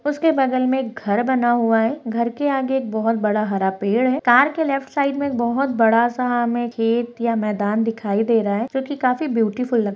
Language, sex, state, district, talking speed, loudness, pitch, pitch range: Hindi, female, Bihar, Araria, 225 wpm, -20 LUFS, 240 Hz, 225-265 Hz